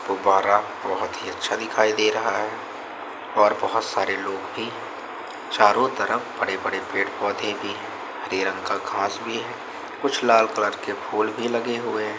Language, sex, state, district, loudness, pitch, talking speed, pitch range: Hindi, male, Uttar Pradesh, Varanasi, -23 LUFS, 110 Hz, 165 wpm, 105-115 Hz